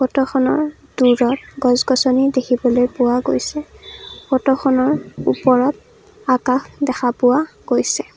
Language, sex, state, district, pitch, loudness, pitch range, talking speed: Assamese, female, Assam, Kamrup Metropolitan, 260 Hz, -17 LUFS, 250-275 Hz, 95 wpm